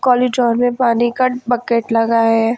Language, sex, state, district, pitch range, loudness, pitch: Hindi, female, Uttar Pradesh, Lucknow, 230-250 Hz, -15 LUFS, 240 Hz